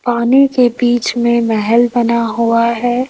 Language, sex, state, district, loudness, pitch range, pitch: Hindi, female, Rajasthan, Jaipur, -13 LUFS, 235-245 Hz, 235 Hz